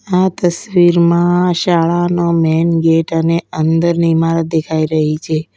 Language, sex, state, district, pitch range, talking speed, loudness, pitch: Gujarati, female, Gujarat, Valsad, 160-175 Hz, 120 wpm, -13 LUFS, 165 Hz